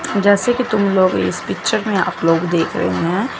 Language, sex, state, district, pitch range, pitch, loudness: Hindi, female, Chandigarh, Chandigarh, 175-220 Hz, 200 Hz, -17 LUFS